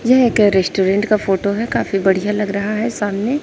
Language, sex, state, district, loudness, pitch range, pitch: Hindi, female, Chhattisgarh, Raipur, -16 LUFS, 195-225 Hz, 205 Hz